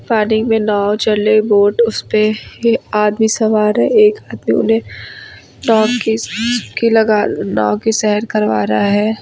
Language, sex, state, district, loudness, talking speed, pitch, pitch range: Hindi, female, Uttar Pradesh, Lucknow, -14 LUFS, 160 wpm, 215 Hz, 210-225 Hz